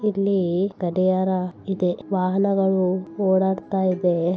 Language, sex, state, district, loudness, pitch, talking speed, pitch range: Kannada, female, Karnataka, Bellary, -22 LUFS, 190 Hz, 80 wpm, 180-195 Hz